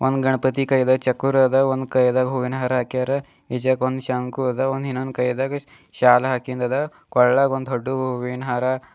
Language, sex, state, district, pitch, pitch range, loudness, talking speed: Kannada, male, Karnataka, Bidar, 130 Hz, 125-135 Hz, -21 LUFS, 145 wpm